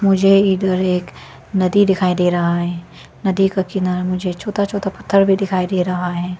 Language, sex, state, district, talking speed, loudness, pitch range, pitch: Hindi, female, Arunachal Pradesh, Lower Dibang Valley, 190 wpm, -17 LUFS, 180-195 Hz, 185 Hz